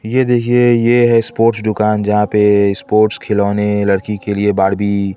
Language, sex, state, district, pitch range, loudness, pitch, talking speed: Hindi, male, Odisha, Khordha, 100-115 Hz, -13 LUFS, 105 Hz, 175 wpm